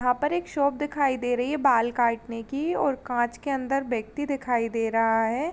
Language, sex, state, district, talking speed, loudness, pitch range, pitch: Hindi, female, Uttar Pradesh, Jalaun, 215 wpm, -26 LUFS, 235-280 Hz, 250 Hz